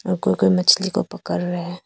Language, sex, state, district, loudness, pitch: Hindi, female, Arunachal Pradesh, Papum Pare, -19 LUFS, 175 Hz